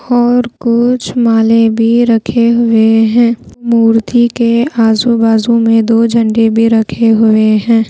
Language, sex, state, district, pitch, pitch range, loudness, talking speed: Hindi, female, Bihar, Patna, 230 Hz, 225-235 Hz, -10 LUFS, 135 wpm